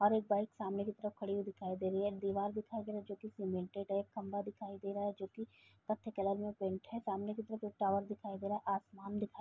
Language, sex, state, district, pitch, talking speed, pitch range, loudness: Hindi, female, Uttar Pradesh, Gorakhpur, 200 Hz, 275 wpm, 195-210 Hz, -40 LUFS